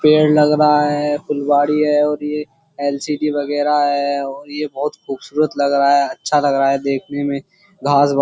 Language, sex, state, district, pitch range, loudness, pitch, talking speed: Hindi, male, Uttar Pradesh, Jyotiba Phule Nagar, 140-150 Hz, -17 LUFS, 145 Hz, 190 wpm